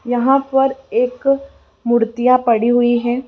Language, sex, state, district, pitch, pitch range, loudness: Hindi, female, Madhya Pradesh, Dhar, 245 Hz, 240-270 Hz, -16 LUFS